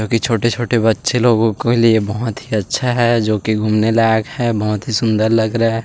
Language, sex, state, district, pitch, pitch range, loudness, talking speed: Hindi, male, Chhattisgarh, Sukma, 115 Hz, 110-120 Hz, -16 LUFS, 255 wpm